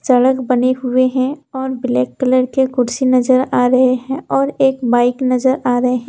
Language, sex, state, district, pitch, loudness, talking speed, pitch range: Hindi, female, Jharkhand, Deoghar, 255 Hz, -15 LUFS, 195 wpm, 250-265 Hz